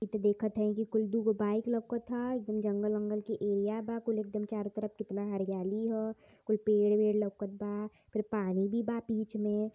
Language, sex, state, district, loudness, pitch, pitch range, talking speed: Hindi, female, Uttar Pradesh, Varanasi, -33 LUFS, 215 Hz, 210-220 Hz, 215 wpm